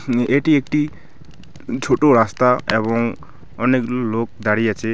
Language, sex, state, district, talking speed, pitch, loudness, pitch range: Bengali, male, West Bengal, Alipurduar, 135 wpm, 120 Hz, -18 LUFS, 110-130 Hz